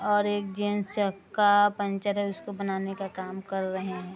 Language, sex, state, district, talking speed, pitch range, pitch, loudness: Hindi, female, Bihar, Araria, 190 wpm, 190-205 Hz, 200 Hz, -28 LUFS